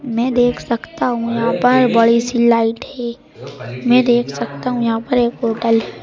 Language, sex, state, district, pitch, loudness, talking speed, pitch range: Hindi, male, Madhya Pradesh, Bhopal, 235 Hz, -16 LUFS, 190 wpm, 230-245 Hz